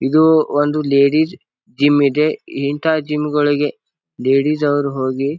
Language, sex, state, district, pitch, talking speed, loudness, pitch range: Kannada, male, Karnataka, Bijapur, 145 Hz, 120 wpm, -16 LUFS, 140-150 Hz